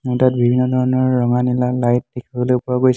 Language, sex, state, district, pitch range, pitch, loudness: Assamese, male, Assam, Hailakandi, 125-130 Hz, 125 Hz, -17 LUFS